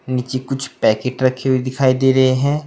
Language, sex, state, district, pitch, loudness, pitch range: Hindi, male, Uttar Pradesh, Saharanpur, 130 Hz, -17 LUFS, 130-135 Hz